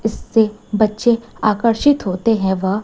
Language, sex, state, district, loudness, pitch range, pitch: Hindi, female, Chhattisgarh, Raipur, -17 LUFS, 205-230 Hz, 220 Hz